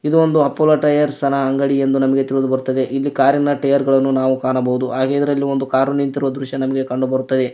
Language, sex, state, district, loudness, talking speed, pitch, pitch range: Kannada, male, Karnataka, Koppal, -17 LUFS, 175 wpm, 135 Hz, 130-140 Hz